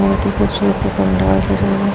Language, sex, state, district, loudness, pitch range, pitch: Hindi, female, Bihar, Vaishali, -16 LUFS, 95-100 Hz, 100 Hz